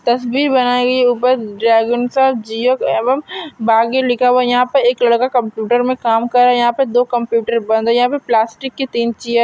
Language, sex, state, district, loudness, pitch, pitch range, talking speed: Hindi, female, Bihar, Gopalganj, -15 LUFS, 245 Hz, 235-255 Hz, 220 wpm